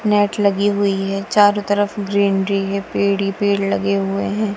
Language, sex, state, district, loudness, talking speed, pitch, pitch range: Hindi, female, Punjab, Kapurthala, -18 LUFS, 185 wpm, 200 Hz, 195-205 Hz